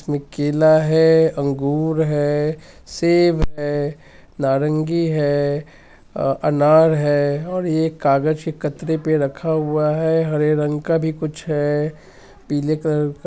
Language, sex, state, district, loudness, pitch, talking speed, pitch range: Hindi, male, Bihar, Sitamarhi, -19 LUFS, 155 Hz, 135 wpm, 145-160 Hz